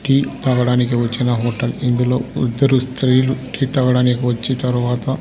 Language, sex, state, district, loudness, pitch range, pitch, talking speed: Telugu, male, Andhra Pradesh, Sri Satya Sai, -17 LUFS, 125-130 Hz, 125 Hz, 125 wpm